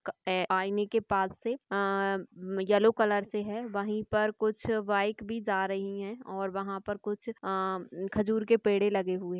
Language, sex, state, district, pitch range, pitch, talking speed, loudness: Hindi, female, Maharashtra, Nagpur, 195-215 Hz, 205 Hz, 180 wpm, -31 LUFS